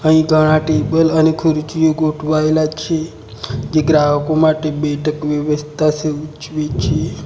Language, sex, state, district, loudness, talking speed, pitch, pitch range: Gujarati, male, Gujarat, Valsad, -16 LUFS, 115 wpm, 155 Hz, 150-155 Hz